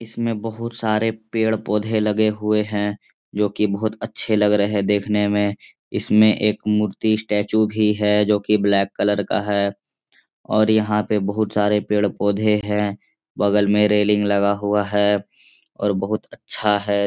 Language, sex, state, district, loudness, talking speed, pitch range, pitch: Hindi, male, Bihar, Gaya, -20 LUFS, 150 wpm, 105-110 Hz, 105 Hz